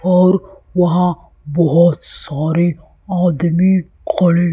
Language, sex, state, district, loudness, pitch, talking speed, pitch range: Hindi, female, Maharashtra, Gondia, -15 LUFS, 175 Hz, 80 wpm, 170-180 Hz